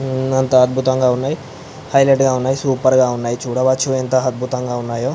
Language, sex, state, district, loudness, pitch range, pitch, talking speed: Telugu, male, Andhra Pradesh, Anantapur, -16 LUFS, 125-130 Hz, 130 Hz, 150 wpm